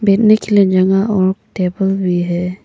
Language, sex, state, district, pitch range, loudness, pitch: Hindi, female, Arunachal Pradesh, Papum Pare, 180-200 Hz, -14 LUFS, 190 Hz